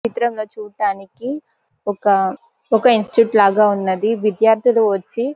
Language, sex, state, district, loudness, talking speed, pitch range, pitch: Telugu, female, Telangana, Karimnagar, -17 LUFS, 125 wpm, 205-235 Hz, 220 Hz